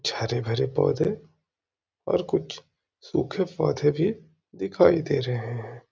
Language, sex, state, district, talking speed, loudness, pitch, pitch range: Hindi, male, Uttar Pradesh, Hamirpur, 130 wpm, -25 LUFS, 155 Hz, 120-180 Hz